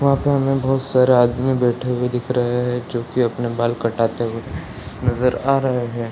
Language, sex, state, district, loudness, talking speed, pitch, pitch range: Hindi, male, Bihar, Sitamarhi, -19 LUFS, 215 wpm, 125 Hz, 120-130 Hz